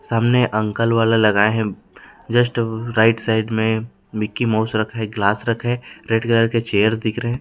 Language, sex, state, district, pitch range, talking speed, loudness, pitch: Hindi, male, Chhattisgarh, Rajnandgaon, 110-115 Hz, 185 wpm, -19 LUFS, 115 Hz